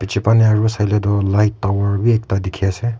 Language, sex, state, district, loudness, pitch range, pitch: Nagamese, male, Nagaland, Kohima, -17 LUFS, 100-110 Hz, 105 Hz